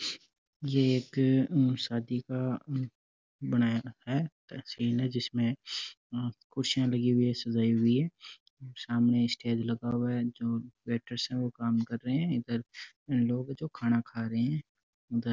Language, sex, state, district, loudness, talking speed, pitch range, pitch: Marwari, male, Rajasthan, Nagaur, -31 LUFS, 155 wpm, 115-130 Hz, 120 Hz